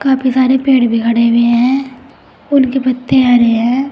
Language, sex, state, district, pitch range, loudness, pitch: Hindi, female, Uttar Pradesh, Saharanpur, 235-265 Hz, -12 LUFS, 255 Hz